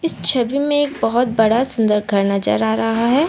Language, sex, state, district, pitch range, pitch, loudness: Hindi, female, Assam, Kamrup Metropolitan, 220-280 Hz, 235 Hz, -17 LUFS